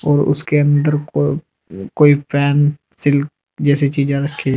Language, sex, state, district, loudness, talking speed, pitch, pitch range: Hindi, male, Uttar Pradesh, Saharanpur, -16 LUFS, 145 wpm, 145 Hz, 140-145 Hz